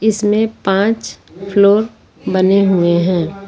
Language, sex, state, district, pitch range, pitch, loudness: Hindi, female, Jharkhand, Ranchi, 185-210 Hz, 195 Hz, -14 LUFS